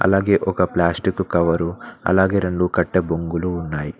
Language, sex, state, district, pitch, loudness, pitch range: Telugu, male, Telangana, Mahabubabad, 90 Hz, -20 LUFS, 85-95 Hz